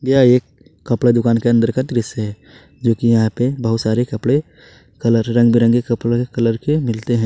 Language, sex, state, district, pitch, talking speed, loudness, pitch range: Hindi, male, Jharkhand, Ranchi, 120 Hz, 205 wpm, -16 LUFS, 115-125 Hz